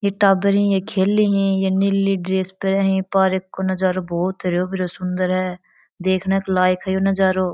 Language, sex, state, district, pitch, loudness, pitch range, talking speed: Marwari, female, Rajasthan, Churu, 190 Hz, -19 LUFS, 185-195 Hz, 205 wpm